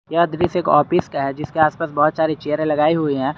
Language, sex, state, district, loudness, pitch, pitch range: Hindi, male, Jharkhand, Garhwa, -18 LUFS, 155 Hz, 150-165 Hz